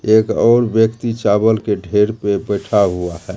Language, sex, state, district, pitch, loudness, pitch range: Hindi, male, Bihar, Katihar, 105 Hz, -15 LUFS, 100-110 Hz